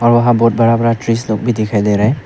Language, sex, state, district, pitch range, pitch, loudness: Hindi, male, Arunachal Pradesh, Papum Pare, 110-120 Hz, 115 Hz, -13 LUFS